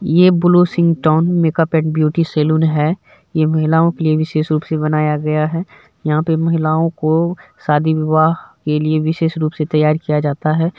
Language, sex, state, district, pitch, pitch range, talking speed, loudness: Hindi, male, Bihar, Madhepura, 155 Hz, 155-165 Hz, 190 wpm, -16 LUFS